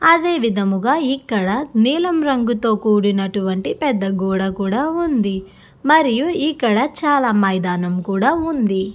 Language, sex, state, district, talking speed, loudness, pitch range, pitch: Telugu, female, Andhra Pradesh, Guntur, 105 wpm, -18 LUFS, 195-290 Hz, 230 Hz